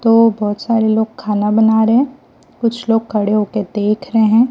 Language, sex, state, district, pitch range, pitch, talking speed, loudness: Hindi, female, Chhattisgarh, Raipur, 210-230 Hz, 220 Hz, 170 wpm, -15 LUFS